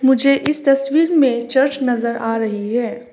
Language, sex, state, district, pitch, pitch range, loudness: Hindi, female, Arunachal Pradesh, Papum Pare, 260 Hz, 235-275 Hz, -17 LUFS